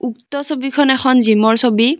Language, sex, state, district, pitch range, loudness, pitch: Assamese, female, Assam, Kamrup Metropolitan, 230-280 Hz, -14 LUFS, 255 Hz